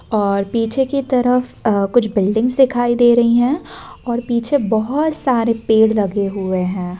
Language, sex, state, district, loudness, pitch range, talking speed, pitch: Hindi, female, Bihar, Sitamarhi, -16 LUFS, 205-250 Hz, 165 wpm, 235 Hz